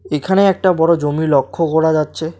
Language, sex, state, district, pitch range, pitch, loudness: Bengali, male, West Bengal, Alipurduar, 150-175 Hz, 160 Hz, -15 LUFS